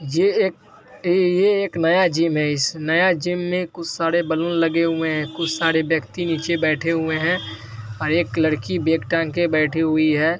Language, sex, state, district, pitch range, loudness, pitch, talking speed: Hindi, male, Bihar, Araria, 155-175 Hz, -20 LUFS, 165 Hz, 190 wpm